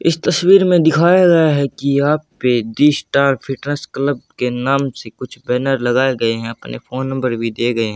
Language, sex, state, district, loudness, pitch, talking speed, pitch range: Hindi, male, Haryana, Jhajjar, -16 LUFS, 135 Hz, 210 wpm, 120-150 Hz